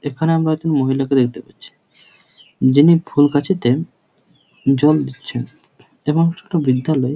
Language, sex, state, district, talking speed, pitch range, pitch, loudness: Bengali, male, West Bengal, Paschim Medinipur, 115 wpm, 135-165 Hz, 145 Hz, -17 LUFS